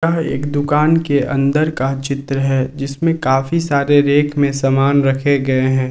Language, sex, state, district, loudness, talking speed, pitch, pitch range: Hindi, male, Jharkhand, Palamu, -16 LUFS, 170 wpm, 140 Hz, 135-145 Hz